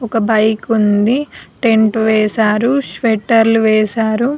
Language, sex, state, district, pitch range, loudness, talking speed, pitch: Telugu, female, Telangana, Karimnagar, 215-230 Hz, -13 LUFS, 95 wpm, 220 Hz